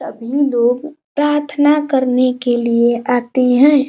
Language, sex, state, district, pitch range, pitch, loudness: Hindi, male, Uttar Pradesh, Ghazipur, 240-290 Hz, 255 Hz, -15 LUFS